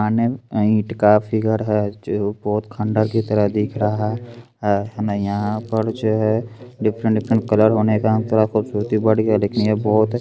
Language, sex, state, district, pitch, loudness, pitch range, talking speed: Hindi, male, Bihar, Begusarai, 110 Hz, -19 LUFS, 105-110 Hz, 170 wpm